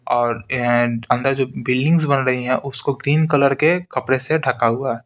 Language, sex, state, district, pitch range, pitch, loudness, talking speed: Hindi, male, Bihar, Patna, 125-140 Hz, 130 Hz, -18 LUFS, 200 wpm